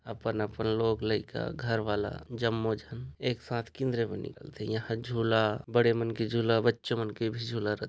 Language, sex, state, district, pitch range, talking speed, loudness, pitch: Hindi, male, Chhattisgarh, Raigarh, 110-120 Hz, 175 wpm, -31 LUFS, 115 Hz